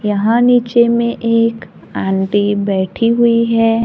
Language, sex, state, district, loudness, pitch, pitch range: Hindi, female, Maharashtra, Gondia, -14 LUFS, 230 Hz, 205-235 Hz